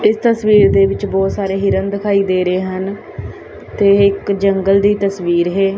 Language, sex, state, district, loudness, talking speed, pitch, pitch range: Punjabi, female, Punjab, Kapurthala, -14 LUFS, 175 wpm, 195 Hz, 195-200 Hz